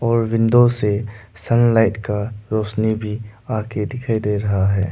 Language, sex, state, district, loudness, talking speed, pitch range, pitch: Hindi, male, Arunachal Pradesh, Lower Dibang Valley, -19 LUFS, 160 wpm, 105-115 Hz, 110 Hz